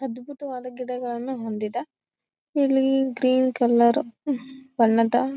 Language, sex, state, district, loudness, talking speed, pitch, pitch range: Kannada, female, Karnataka, Raichur, -23 LUFS, 80 wpm, 255 Hz, 240-270 Hz